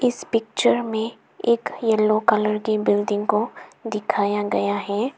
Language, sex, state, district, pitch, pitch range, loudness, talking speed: Hindi, female, Arunachal Pradesh, Papum Pare, 215 Hz, 205-225 Hz, -22 LUFS, 140 wpm